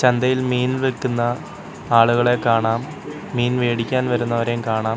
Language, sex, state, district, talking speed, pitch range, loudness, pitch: Malayalam, male, Kerala, Kollam, 110 wpm, 115-125 Hz, -19 LUFS, 120 Hz